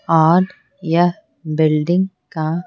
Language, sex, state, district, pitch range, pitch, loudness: Hindi, female, Bihar, Patna, 155-180 Hz, 170 Hz, -17 LUFS